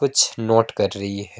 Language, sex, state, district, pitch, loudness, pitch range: Hindi, male, West Bengal, Alipurduar, 110 Hz, -20 LUFS, 100-115 Hz